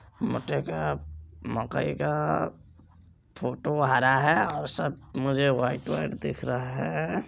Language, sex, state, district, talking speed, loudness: Maithili, male, Bihar, Supaul, 125 wpm, -28 LUFS